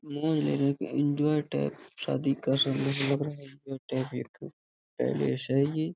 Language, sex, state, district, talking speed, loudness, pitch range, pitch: Hindi, male, Uttar Pradesh, Budaun, 110 wpm, -29 LUFS, 130-145 Hz, 135 Hz